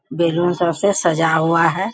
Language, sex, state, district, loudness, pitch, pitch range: Hindi, female, Bihar, Bhagalpur, -17 LUFS, 170 Hz, 165-175 Hz